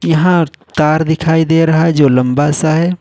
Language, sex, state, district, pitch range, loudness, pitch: Hindi, male, Jharkhand, Ranchi, 150-165 Hz, -12 LUFS, 160 Hz